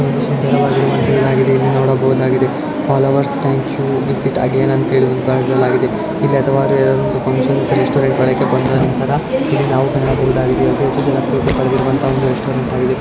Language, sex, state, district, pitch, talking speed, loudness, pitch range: Kannada, male, Karnataka, Raichur, 135 Hz, 150 wpm, -15 LUFS, 130-135 Hz